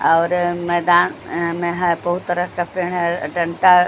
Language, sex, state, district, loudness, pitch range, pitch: Hindi, female, Bihar, Patna, -19 LUFS, 170-175 Hz, 175 Hz